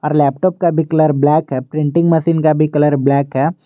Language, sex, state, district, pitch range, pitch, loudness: Hindi, male, Jharkhand, Garhwa, 145-160 Hz, 155 Hz, -14 LUFS